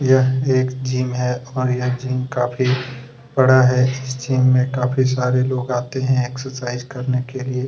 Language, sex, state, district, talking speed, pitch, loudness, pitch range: Hindi, male, Chhattisgarh, Kabirdham, 165 wpm, 130 Hz, -19 LUFS, 125-130 Hz